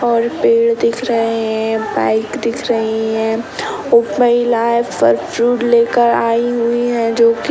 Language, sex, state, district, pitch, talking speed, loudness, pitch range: Hindi, male, Bihar, Sitamarhi, 235 Hz, 160 wpm, -15 LUFS, 225-240 Hz